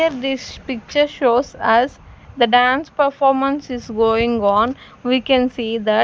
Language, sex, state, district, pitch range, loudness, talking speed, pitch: English, female, Punjab, Fazilka, 230-270 Hz, -18 LUFS, 150 wpm, 250 Hz